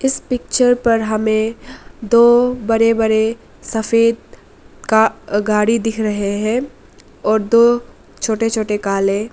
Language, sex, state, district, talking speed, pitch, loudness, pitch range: Hindi, female, Arunachal Pradesh, Lower Dibang Valley, 115 wpm, 225 Hz, -16 LUFS, 215-235 Hz